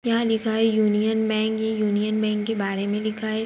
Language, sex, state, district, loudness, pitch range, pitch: Hindi, female, Bihar, Jahanabad, -23 LUFS, 210-220 Hz, 220 Hz